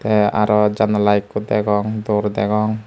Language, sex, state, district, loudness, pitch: Chakma, male, Tripura, Unakoti, -18 LUFS, 105 Hz